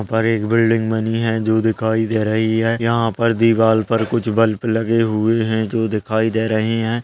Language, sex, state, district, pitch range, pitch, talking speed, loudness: Hindi, male, Uttar Pradesh, Jyotiba Phule Nagar, 110-115 Hz, 110 Hz, 205 wpm, -17 LUFS